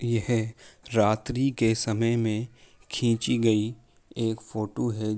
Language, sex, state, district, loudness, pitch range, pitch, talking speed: Hindi, male, Uttar Pradesh, Jalaun, -27 LUFS, 110-120 Hz, 115 Hz, 115 wpm